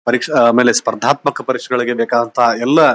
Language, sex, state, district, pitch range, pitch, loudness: Kannada, male, Karnataka, Bijapur, 120-125 Hz, 120 Hz, -14 LUFS